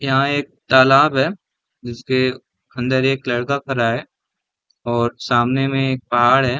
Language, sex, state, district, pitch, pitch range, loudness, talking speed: Hindi, male, Chhattisgarh, Raigarh, 130 Hz, 120-135 Hz, -17 LUFS, 155 wpm